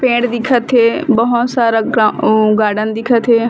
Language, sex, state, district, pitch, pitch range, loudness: Chhattisgarhi, female, Chhattisgarh, Bilaspur, 230 Hz, 220-240 Hz, -13 LUFS